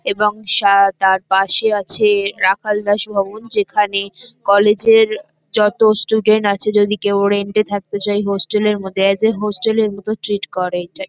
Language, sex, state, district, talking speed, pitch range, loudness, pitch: Bengali, female, West Bengal, North 24 Parganas, 175 wpm, 200-215 Hz, -15 LUFS, 205 Hz